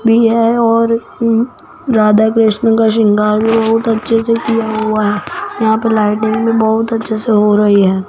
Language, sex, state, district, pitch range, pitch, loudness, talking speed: Hindi, female, Rajasthan, Jaipur, 215-230 Hz, 225 Hz, -12 LUFS, 185 wpm